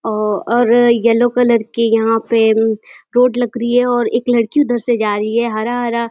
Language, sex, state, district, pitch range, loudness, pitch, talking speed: Hindi, female, Uttar Pradesh, Deoria, 225-240 Hz, -14 LUFS, 235 Hz, 215 wpm